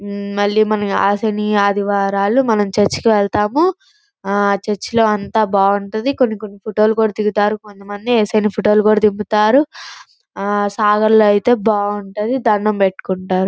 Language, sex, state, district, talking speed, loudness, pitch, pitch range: Telugu, female, Andhra Pradesh, Guntur, 150 wpm, -16 LUFS, 210 Hz, 205-220 Hz